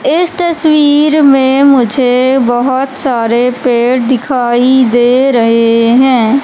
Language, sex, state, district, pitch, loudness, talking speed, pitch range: Hindi, female, Madhya Pradesh, Katni, 255 Hz, -9 LUFS, 100 wpm, 240-275 Hz